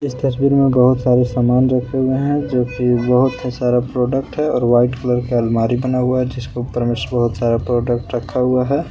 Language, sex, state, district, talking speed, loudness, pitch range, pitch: Hindi, male, Jharkhand, Palamu, 215 wpm, -17 LUFS, 120-130 Hz, 125 Hz